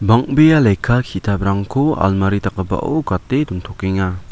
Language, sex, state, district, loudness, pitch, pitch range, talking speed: Garo, male, Meghalaya, West Garo Hills, -16 LUFS, 100 Hz, 95-135 Hz, 95 wpm